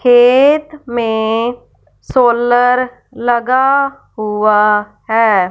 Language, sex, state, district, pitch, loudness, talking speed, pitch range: Hindi, female, Punjab, Fazilka, 240 Hz, -13 LUFS, 65 wpm, 220-255 Hz